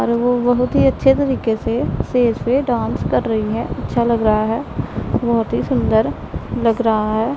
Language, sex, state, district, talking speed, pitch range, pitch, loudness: Hindi, female, Punjab, Pathankot, 185 wpm, 225-245 Hz, 235 Hz, -18 LUFS